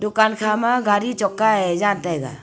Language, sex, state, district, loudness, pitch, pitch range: Wancho, female, Arunachal Pradesh, Longding, -19 LUFS, 210 Hz, 190-220 Hz